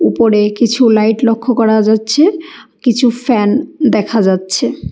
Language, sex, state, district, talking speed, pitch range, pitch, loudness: Bengali, female, Karnataka, Bangalore, 120 wpm, 215-255 Hz, 230 Hz, -12 LUFS